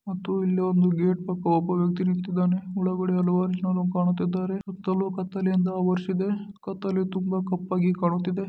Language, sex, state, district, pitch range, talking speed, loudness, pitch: Kannada, male, Karnataka, Dharwad, 180-190 Hz, 135 wpm, -26 LUFS, 185 Hz